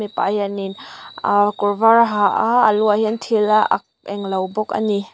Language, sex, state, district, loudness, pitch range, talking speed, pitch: Mizo, female, Mizoram, Aizawl, -18 LUFS, 200-215 Hz, 220 wpm, 210 Hz